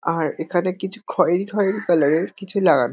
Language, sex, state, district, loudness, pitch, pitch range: Bengali, male, West Bengal, Kolkata, -20 LUFS, 180 Hz, 165-195 Hz